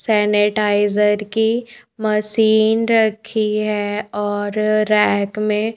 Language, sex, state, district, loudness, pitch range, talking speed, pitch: Hindi, female, Madhya Pradesh, Bhopal, -17 LUFS, 210-220 Hz, 75 wpm, 215 Hz